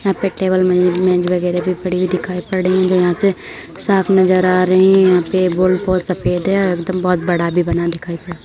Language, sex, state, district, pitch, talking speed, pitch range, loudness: Hindi, male, Bihar, Bhagalpur, 185 Hz, 220 wpm, 180-185 Hz, -15 LUFS